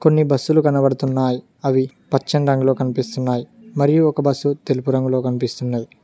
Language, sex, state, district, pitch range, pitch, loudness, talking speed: Telugu, male, Telangana, Mahabubabad, 130-145 Hz, 135 Hz, -19 LUFS, 130 wpm